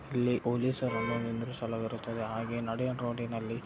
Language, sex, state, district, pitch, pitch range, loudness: Kannada, male, Karnataka, Dharwad, 115 Hz, 115-125 Hz, -34 LUFS